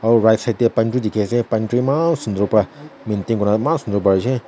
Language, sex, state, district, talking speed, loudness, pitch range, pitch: Nagamese, male, Nagaland, Kohima, 230 wpm, -18 LUFS, 105-125 Hz, 115 Hz